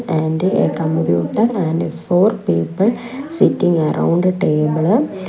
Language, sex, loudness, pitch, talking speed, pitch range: English, female, -17 LUFS, 175 Hz, 100 wpm, 160-210 Hz